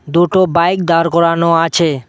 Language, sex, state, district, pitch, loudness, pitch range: Bengali, male, West Bengal, Cooch Behar, 170 Hz, -12 LUFS, 165-175 Hz